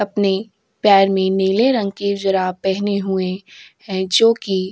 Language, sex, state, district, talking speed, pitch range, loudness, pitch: Hindi, female, Uttar Pradesh, Jyotiba Phule Nagar, 155 wpm, 190-205 Hz, -17 LUFS, 195 Hz